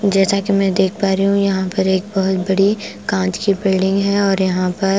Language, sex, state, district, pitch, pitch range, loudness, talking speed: Hindi, female, Punjab, Kapurthala, 195 Hz, 190-200 Hz, -17 LUFS, 230 wpm